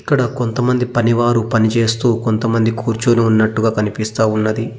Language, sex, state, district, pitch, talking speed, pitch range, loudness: Telugu, male, Telangana, Mahabubabad, 115 Hz, 150 wpm, 110-120 Hz, -16 LUFS